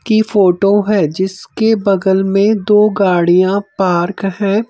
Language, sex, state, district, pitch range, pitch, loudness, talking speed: Hindi, male, Madhya Pradesh, Bhopal, 190-210 Hz, 195 Hz, -13 LUFS, 130 wpm